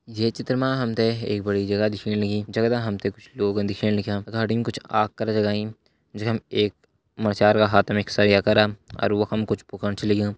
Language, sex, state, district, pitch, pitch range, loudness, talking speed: Garhwali, male, Uttarakhand, Uttarkashi, 105 Hz, 105-110 Hz, -23 LUFS, 215 wpm